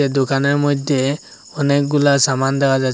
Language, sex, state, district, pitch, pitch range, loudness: Bengali, male, Assam, Hailakandi, 140 Hz, 135-145 Hz, -17 LUFS